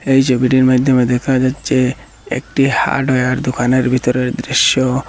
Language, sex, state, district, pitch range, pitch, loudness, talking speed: Bengali, male, Assam, Hailakandi, 125-130 Hz, 130 Hz, -14 LUFS, 120 wpm